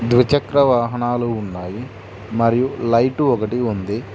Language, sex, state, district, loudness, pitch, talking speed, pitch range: Telugu, male, Telangana, Mahabubabad, -18 LUFS, 120 Hz, 100 wpm, 110-125 Hz